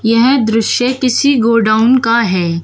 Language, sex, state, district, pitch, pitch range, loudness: Hindi, female, Uttar Pradesh, Shamli, 230 Hz, 225-255 Hz, -12 LUFS